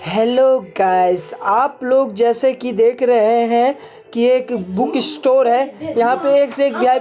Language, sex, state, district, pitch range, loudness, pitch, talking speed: Hindi, male, Uttar Pradesh, Hamirpur, 235-265 Hz, -15 LUFS, 250 Hz, 160 wpm